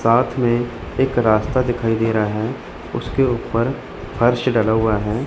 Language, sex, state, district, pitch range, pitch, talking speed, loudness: Hindi, male, Chandigarh, Chandigarh, 110-125 Hz, 115 Hz, 160 wpm, -19 LUFS